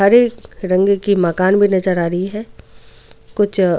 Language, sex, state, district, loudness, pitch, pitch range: Hindi, female, Goa, North and South Goa, -16 LUFS, 195 Hz, 185-205 Hz